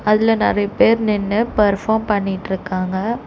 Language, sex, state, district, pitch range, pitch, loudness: Tamil, female, Tamil Nadu, Chennai, 195-220 Hz, 210 Hz, -18 LUFS